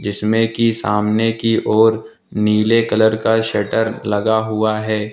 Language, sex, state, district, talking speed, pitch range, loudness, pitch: Hindi, male, Uttar Pradesh, Lucknow, 140 wpm, 105-115 Hz, -16 LUFS, 110 Hz